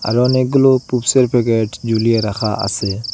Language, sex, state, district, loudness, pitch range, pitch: Bengali, male, Assam, Hailakandi, -15 LUFS, 110-125 Hz, 115 Hz